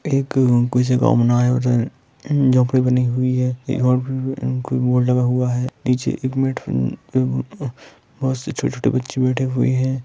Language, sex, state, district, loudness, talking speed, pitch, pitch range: Hindi, male, Bihar, East Champaran, -19 LUFS, 175 wpm, 125 Hz, 125-130 Hz